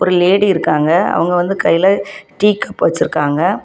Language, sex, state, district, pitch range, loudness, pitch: Tamil, female, Tamil Nadu, Kanyakumari, 170-195 Hz, -14 LUFS, 185 Hz